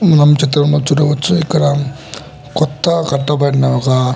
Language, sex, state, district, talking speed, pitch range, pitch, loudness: Telugu, male, Telangana, Nalgonda, 130 wpm, 140-155 Hz, 145 Hz, -13 LUFS